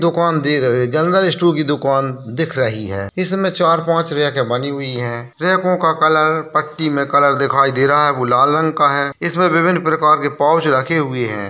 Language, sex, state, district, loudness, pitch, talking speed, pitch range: Hindi, male, Bihar, Jamui, -15 LUFS, 150 Hz, 215 wpm, 135-165 Hz